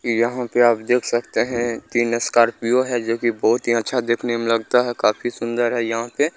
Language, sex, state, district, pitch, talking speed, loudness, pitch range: Hindi, male, Bihar, Gopalganj, 120 Hz, 205 wpm, -20 LUFS, 115-120 Hz